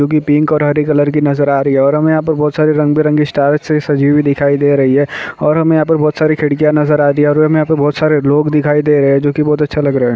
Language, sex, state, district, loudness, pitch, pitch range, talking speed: Hindi, male, Maharashtra, Nagpur, -12 LUFS, 150 Hz, 145-150 Hz, 295 wpm